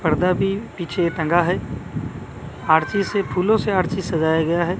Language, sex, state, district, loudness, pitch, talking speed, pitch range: Hindi, male, Odisha, Malkangiri, -21 LUFS, 175 Hz, 160 wpm, 160-190 Hz